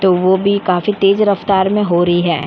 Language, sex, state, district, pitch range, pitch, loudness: Hindi, female, Maharashtra, Chandrapur, 180-200 Hz, 190 Hz, -14 LUFS